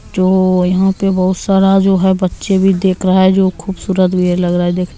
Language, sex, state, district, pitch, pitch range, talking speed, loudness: Hindi, male, Bihar, Darbhanga, 185 Hz, 185-190 Hz, 255 wpm, -13 LUFS